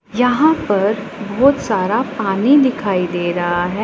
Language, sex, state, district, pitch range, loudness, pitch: Hindi, female, Punjab, Pathankot, 190-260 Hz, -16 LUFS, 210 Hz